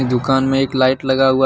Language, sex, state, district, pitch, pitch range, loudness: Hindi, male, Jharkhand, Deoghar, 135 Hz, 130-135 Hz, -16 LUFS